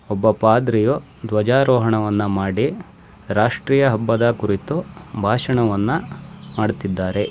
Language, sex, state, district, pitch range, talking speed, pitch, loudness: Kannada, male, Karnataka, Shimoga, 105-125 Hz, 75 wpm, 110 Hz, -19 LUFS